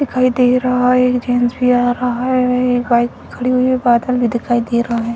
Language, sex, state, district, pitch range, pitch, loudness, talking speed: Hindi, female, Bihar, Sitamarhi, 240-250 Hz, 250 Hz, -15 LUFS, 255 wpm